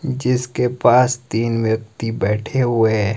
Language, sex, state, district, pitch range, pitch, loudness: Hindi, male, Himachal Pradesh, Shimla, 110-125 Hz, 115 Hz, -18 LUFS